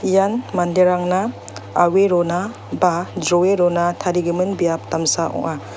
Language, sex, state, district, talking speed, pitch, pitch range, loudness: Garo, female, Meghalaya, North Garo Hills, 115 wpm, 180 Hz, 175-185 Hz, -18 LUFS